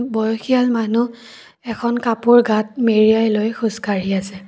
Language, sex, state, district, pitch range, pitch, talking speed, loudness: Assamese, female, Assam, Kamrup Metropolitan, 215-240 Hz, 225 Hz, 120 wpm, -17 LUFS